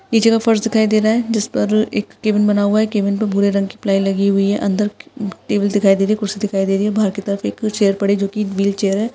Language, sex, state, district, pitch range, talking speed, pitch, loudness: Hindi, female, Maharashtra, Solapur, 200-215 Hz, 290 wpm, 205 Hz, -17 LUFS